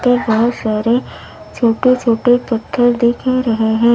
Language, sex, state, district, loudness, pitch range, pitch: Hindi, female, Uttar Pradesh, Lalitpur, -15 LUFS, 230-245 Hz, 235 Hz